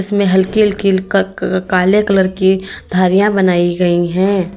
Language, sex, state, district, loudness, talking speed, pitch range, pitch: Hindi, female, Uttar Pradesh, Lalitpur, -13 LUFS, 145 wpm, 185-195 Hz, 190 Hz